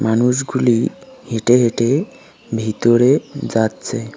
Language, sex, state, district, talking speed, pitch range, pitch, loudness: Bengali, male, West Bengal, Cooch Behar, 70 wpm, 115-135 Hz, 120 Hz, -17 LUFS